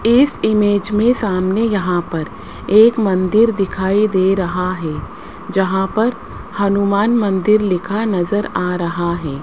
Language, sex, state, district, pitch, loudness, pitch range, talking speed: Hindi, female, Rajasthan, Jaipur, 195 Hz, -16 LUFS, 185-215 Hz, 135 wpm